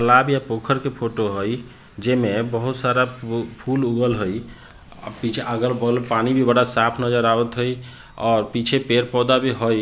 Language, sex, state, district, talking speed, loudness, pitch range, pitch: Bhojpuri, male, Bihar, Sitamarhi, 165 wpm, -20 LUFS, 115-125 Hz, 120 Hz